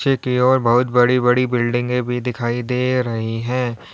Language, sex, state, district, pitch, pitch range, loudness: Hindi, male, Uttar Pradesh, Lalitpur, 125 Hz, 120-125 Hz, -18 LUFS